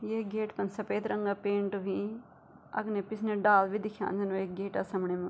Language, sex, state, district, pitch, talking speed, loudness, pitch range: Garhwali, female, Uttarakhand, Tehri Garhwal, 205 Hz, 205 wpm, -32 LUFS, 195-215 Hz